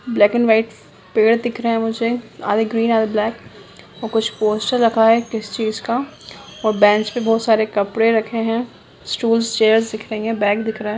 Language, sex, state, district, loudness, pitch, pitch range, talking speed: Hindi, female, Bihar, Purnia, -18 LUFS, 225 Hz, 215-230 Hz, 200 wpm